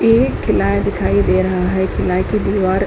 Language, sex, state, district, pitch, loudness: Hindi, female, Uttar Pradesh, Hamirpur, 185 Hz, -16 LUFS